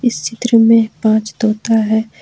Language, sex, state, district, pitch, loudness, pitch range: Hindi, female, Jharkhand, Ranchi, 225 Hz, -14 LUFS, 220-230 Hz